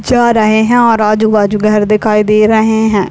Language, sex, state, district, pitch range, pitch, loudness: Hindi, male, Chhattisgarh, Raigarh, 210-220 Hz, 215 Hz, -10 LUFS